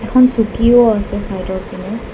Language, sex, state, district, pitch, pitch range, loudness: Assamese, female, Assam, Kamrup Metropolitan, 220 Hz, 205-230 Hz, -15 LUFS